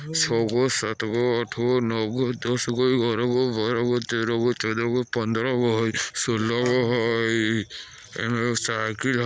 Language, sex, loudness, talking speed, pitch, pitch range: Bhojpuri, male, -24 LUFS, 130 wpm, 120 Hz, 115-125 Hz